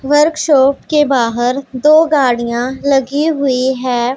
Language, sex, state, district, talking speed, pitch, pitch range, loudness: Hindi, female, Punjab, Pathankot, 115 wpm, 270 Hz, 255-295 Hz, -13 LUFS